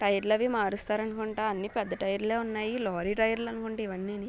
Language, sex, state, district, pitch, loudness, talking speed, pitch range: Telugu, female, Telangana, Nalgonda, 215 Hz, -30 LUFS, 125 wpm, 200-225 Hz